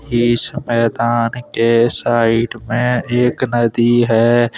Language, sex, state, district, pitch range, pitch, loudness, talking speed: Hindi, male, Jharkhand, Deoghar, 115-120 Hz, 120 Hz, -15 LUFS, 105 wpm